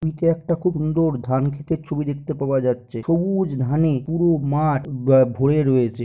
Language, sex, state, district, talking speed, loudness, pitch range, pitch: Bengali, male, West Bengal, North 24 Parganas, 160 wpm, -21 LUFS, 135-165 Hz, 150 Hz